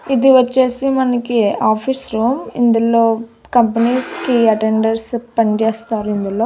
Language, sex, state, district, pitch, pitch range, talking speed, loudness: Telugu, female, Andhra Pradesh, Annamaya, 230 Hz, 225-255 Hz, 100 wpm, -15 LUFS